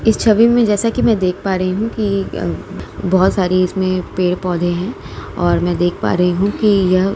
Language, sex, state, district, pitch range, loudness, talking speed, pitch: Hindi, female, Uttar Pradesh, Jalaun, 180-210 Hz, -16 LUFS, 225 wpm, 190 Hz